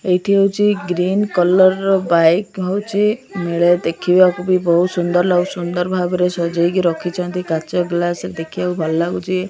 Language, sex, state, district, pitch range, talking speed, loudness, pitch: Odia, female, Odisha, Malkangiri, 175-185 Hz, 145 wpm, -17 LUFS, 180 Hz